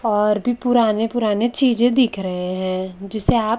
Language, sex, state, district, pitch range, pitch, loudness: Hindi, female, Maharashtra, Gondia, 195-240 Hz, 220 Hz, -18 LUFS